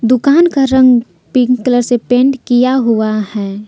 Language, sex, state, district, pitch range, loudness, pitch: Hindi, female, Jharkhand, Palamu, 225-260 Hz, -12 LUFS, 245 Hz